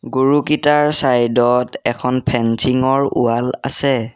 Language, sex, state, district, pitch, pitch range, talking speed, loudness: Assamese, male, Assam, Sonitpur, 130 Hz, 120-140 Hz, 115 wpm, -16 LUFS